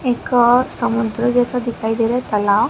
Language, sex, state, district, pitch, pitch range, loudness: Hindi, female, Maharashtra, Gondia, 240 Hz, 230-245 Hz, -17 LUFS